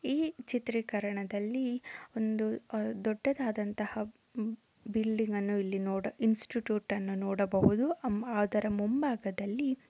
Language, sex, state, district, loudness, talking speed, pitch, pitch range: Kannada, female, Karnataka, Dakshina Kannada, -33 LUFS, 75 wpm, 220 Hz, 205-240 Hz